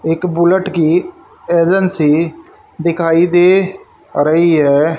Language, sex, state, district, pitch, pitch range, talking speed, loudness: Hindi, female, Haryana, Charkhi Dadri, 170 Hz, 160-185 Hz, 95 wpm, -13 LUFS